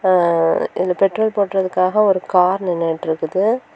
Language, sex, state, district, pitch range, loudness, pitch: Tamil, female, Tamil Nadu, Kanyakumari, 175-200 Hz, -17 LUFS, 185 Hz